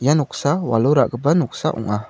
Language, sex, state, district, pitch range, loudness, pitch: Garo, male, Meghalaya, South Garo Hills, 115-155 Hz, -19 LUFS, 140 Hz